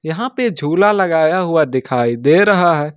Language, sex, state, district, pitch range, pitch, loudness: Hindi, male, Jharkhand, Ranchi, 150-200 Hz, 160 Hz, -14 LUFS